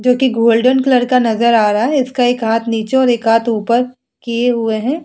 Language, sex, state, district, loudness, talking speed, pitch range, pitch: Hindi, female, Bihar, Vaishali, -14 LUFS, 250 wpm, 230-250 Hz, 240 Hz